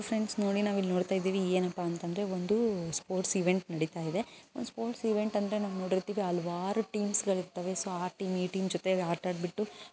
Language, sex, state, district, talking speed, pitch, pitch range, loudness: Kannada, female, Karnataka, Bijapur, 145 wpm, 190 Hz, 180-205 Hz, -33 LUFS